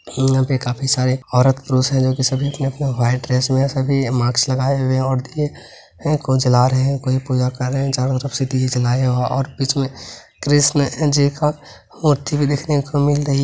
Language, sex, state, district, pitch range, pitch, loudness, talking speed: Maithili, male, Bihar, Begusarai, 130-140 Hz, 135 Hz, -18 LUFS, 200 wpm